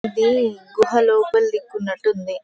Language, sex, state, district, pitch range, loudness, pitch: Telugu, female, Telangana, Karimnagar, 210-240 Hz, -19 LUFS, 225 Hz